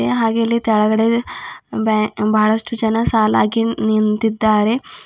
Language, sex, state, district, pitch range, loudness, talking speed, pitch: Kannada, female, Karnataka, Bidar, 215-225 Hz, -17 LUFS, 105 wpm, 220 Hz